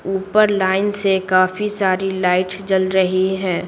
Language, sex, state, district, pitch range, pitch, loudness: Hindi, female, Bihar, Patna, 185-195 Hz, 190 Hz, -17 LUFS